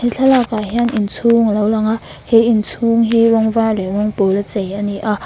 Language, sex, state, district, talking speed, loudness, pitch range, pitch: Mizo, female, Mizoram, Aizawl, 195 wpm, -15 LUFS, 205-230 Hz, 220 Hz